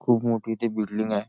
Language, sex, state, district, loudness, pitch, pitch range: Marathi, male, Maharashtra, Nagpur, -26 LUFS, 115 Hz, 110-115 Hz